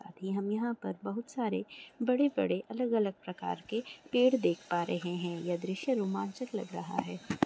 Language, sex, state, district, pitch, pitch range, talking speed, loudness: Hindi, female, Goa, North and South Goa, 215 Hz, 185-245 Hz, 185 wpm, -34 LUFS